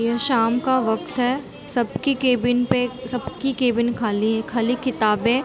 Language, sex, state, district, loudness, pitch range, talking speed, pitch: Hindi, female, Chhattisgarh, Bilaspur, -21 LUFS, 230-255 Hz, 165 wpm, 245 Hz